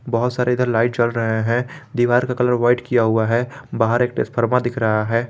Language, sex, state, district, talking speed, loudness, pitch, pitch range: Hindi, male, Jharkhand, Garhwa, 225 wpm, -19 LUFS, 120 Hz, 115-125 Hz